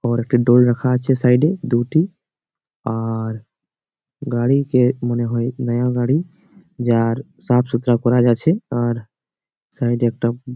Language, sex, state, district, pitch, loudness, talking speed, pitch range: Bengali, male, West Bengal, Malda, 120 Hz, -18 LUFS, 130 wpm, 120-130 Hz